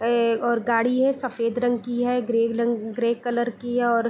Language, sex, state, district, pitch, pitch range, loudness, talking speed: Hindi, female, Bihar, Gopalganj, 240 Hz, 230-245 Hz, -23 LUFS, 220 wpm